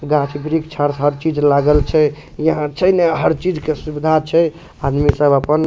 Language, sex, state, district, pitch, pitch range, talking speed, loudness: Maithili, male, Bihar, Supaul, 150 Hz, 145-160 Hz, 190 wpm, -16 LUFS